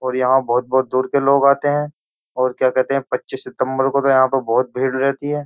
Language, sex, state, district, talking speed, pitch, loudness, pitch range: Hindi, male, Uttar Pradesh, Jyotiba Phule Nagar, 240 wpm, 130 Hz, -18 LUFS, 130-140 Hz